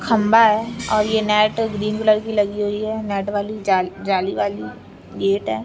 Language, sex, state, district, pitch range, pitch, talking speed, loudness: Hindi, female, Chhattisgarh, Bilaspur, 185-215 Hz, 205 Hz, 190 wpm, -19 LUFS